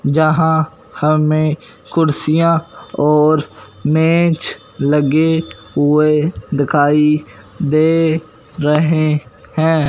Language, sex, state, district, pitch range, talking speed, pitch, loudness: Hindi, male, Punjab, Fazilka, 150-160 Hz, 65 wpm, 155 Hz, -15 LUFS